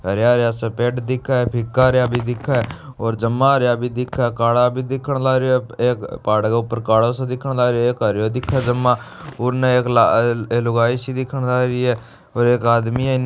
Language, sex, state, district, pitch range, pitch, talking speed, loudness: Hindi, male, Rajasthan, Churu, 115-130 Hz, 120 Hz, 235 wpm, -18 LUFS